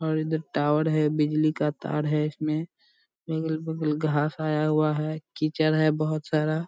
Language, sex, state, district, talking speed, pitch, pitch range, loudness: Hindi, male, Bihar, Purnia, 160 wpm, 155 Hz, 150-155 Hz, -26 LUFS